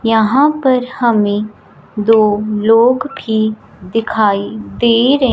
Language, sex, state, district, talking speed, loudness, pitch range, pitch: Hindi, male, Punjab, Fazilka, 100 wpm, -13 LUFS, 210-245 Hz, 225 Hz